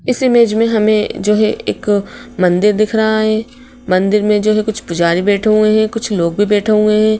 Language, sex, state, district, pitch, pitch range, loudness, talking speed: Hindi, female, Madhya Pradesh, Bhopal, 215 Hz, 205-220 Hz, -13 LUFS, 215 wpm